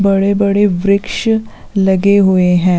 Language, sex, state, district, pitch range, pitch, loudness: Hindi, female, Uttarakhand, Uttarkashi, 190-200 Hz, 200 Hz, -13 LUFS